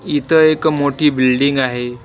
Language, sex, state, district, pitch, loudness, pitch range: Marathi, male, Maharashtra, Washim, 145 Hz, -14 LUFS, 130-155 Hz